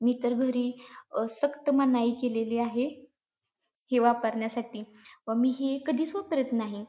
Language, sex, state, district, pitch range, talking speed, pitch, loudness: Marathi, female, Maharashtra, Pune, 230-275 Hz, 140 wpm, 245 Hz, -29 LUFS